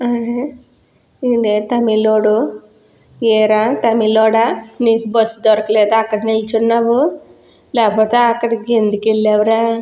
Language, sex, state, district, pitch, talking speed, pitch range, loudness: Telugu, female, Andhra Pradesh, Guntur, 225 Hz, 85 wpm, 215-235 Hz, -14 LUFS